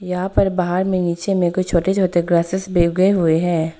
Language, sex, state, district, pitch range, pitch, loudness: Hindi, female, Arunachal Pradesh, Lower Dibang Valley, 170-190 Hz, 180 Hz, -18 LUFS